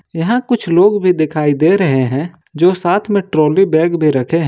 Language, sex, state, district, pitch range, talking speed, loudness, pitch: Hindi, male, Jharkhand, Ranchi, 155-190 Hz, 215 wpm, -13 LUFS, 170 Hz